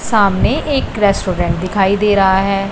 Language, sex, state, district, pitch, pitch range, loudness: Hindi, female, Punjab, Pathankot, 195 Hz, 190-210 Hz, -14 LUFS